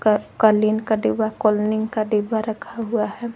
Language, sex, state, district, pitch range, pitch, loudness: Hindi, female, Jharkhand, Garhwa, 215-225 Hz, 220 Hz, -21 LUFS